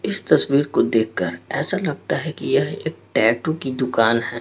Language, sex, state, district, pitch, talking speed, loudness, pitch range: Hindi, male, Bihar, Patna, 120 Hz, 205 wpm, -20 LUFS, 115-135 Hz